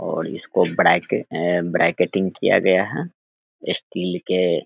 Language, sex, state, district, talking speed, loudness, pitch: Hindi, male, Bihar, Vaishali, 130 wpm, -20 LUFS, 90 Hz